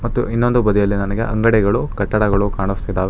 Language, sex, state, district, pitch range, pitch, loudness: Kannada, male, Karnataka, Bangalore, 100-115 Hz, 105 Hz, -17 LUFS